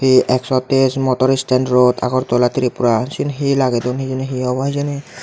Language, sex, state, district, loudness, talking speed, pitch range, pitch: Chakma, male, Tripura, Dhalai, -16 LUFS, 170 wpm, 125-135 Hz, 130 Hz